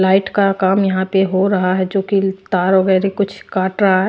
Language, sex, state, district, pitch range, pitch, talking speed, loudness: Hindi, female, Maharashtra, Washim, 190-195 Hz, 190 Hz, 235 wpm, -16 LUFS